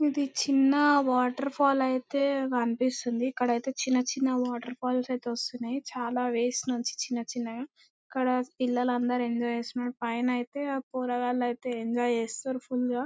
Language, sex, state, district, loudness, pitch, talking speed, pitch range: Telugu, female, Andhra Pradesh, Anantapur, -29 LUFS, 250 Hz, 135 wpm, 245-265 Hz